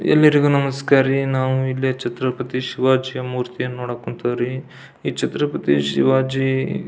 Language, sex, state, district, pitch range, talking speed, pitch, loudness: Kannada, male, Karnataka, Belgaum, 125-135 Hz, 120 wpm, 130 Hz, -20 LUFS